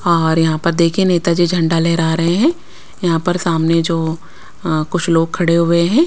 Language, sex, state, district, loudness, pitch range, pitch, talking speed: Hindi, female, Bihar, West Champaran, -15 LUFS, 165-175 Hz, 170 Hz, 190 wpm